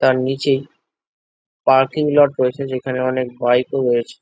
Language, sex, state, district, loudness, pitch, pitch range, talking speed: Bengali, male, West Bengal, Jalpaiguri, -18 LUFS, 130 Hz, 130-135 Hz, 155 wpm